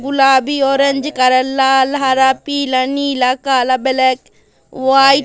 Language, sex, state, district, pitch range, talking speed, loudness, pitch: Hindi, female, Madhya Pradesh, Katni, 260-275 Hz, 135 wpm, -13 LUFS, 265 Hz